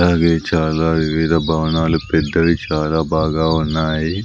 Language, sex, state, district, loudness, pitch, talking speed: Telugu, male, Andhra Pradesh, Sri Satya Sai, -17 LUFS, 80 Hz, 115 wpm